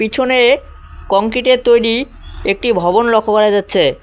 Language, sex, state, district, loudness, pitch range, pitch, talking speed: Bengali, male, West Bengal, Cooch Behar, -13 LUFS, 195-245 Hz, 220 Hz, 135 wpm